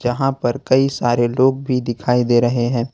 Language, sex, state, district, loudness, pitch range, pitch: Hindi, male, Jharkhand, Ranchi, -17 LUFS, 120-130 Hz, 125 Hz